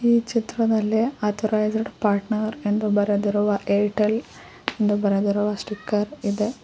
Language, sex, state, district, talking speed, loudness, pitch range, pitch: Kannada, female, Karnataka, Koppal, 90 wpm, -23 LUFS, 205-220 Hz, 210 Hz